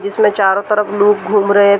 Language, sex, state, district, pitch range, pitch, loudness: Hindi, female, Bihar, Gaya, 200-210 Hz, 205 Hz, -13 LUFS